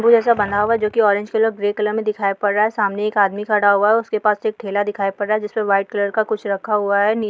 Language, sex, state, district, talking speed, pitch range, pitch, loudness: Hindi, female, Bihar, Jamui, 320 wpm, 205-215 Hz, 210 Hz, -18 LUFS